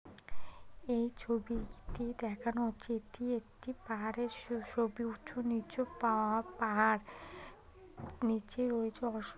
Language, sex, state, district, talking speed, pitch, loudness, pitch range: Bengali, female, West Bengal, North 24 Parganas, 110 wpm, 230 Hz, -37 LUFS, 220-240 Hz